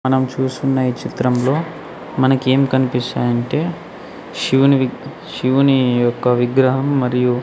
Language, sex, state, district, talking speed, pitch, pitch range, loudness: Telugu, male, Andhra Pradesh, Sri Satya Sai, 105 wpm, 130 Hz, 125-135 Hz, -17 LUFS